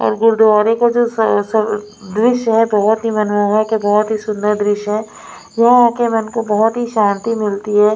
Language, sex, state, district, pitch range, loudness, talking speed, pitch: Hindi, female, Maharashtra, Mumbai Suburban, 210-225 Hz, -15 LUFS, 195 wpm, 215 Hz